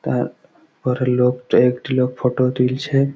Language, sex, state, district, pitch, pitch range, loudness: Bengali, male, West Bengal, Malda, 125 Hz, 125-130 Hz, -19 LUFS